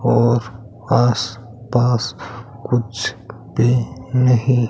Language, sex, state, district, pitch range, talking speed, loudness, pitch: Hindi, male, Rajasthan, Bikaner, 115-125 Hz, 75 wpm, -18 LUFS, 120 Hz